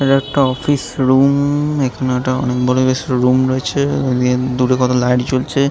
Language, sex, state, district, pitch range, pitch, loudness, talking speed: Bengali, male, West Bengal, Kolkata, 125-140 Hz, 130 Hz, -15 LUFS, 200 wpm